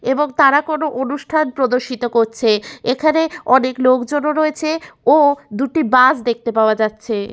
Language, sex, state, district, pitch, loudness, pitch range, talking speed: Bengali, female, West Bengal, Malda, 265 Hz, -16 LUFS, 240-300 Hz, 130 wpm